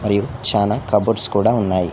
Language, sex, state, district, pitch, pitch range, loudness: Telugu, male, Telangana, Mahabubabad, 105 Hz, 100-115 Hz, -17 LUFS